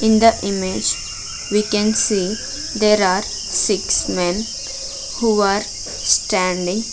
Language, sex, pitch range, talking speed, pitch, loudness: English, female, 190-220 Hz, 110 wpm, 210 Hz, -18 LUFS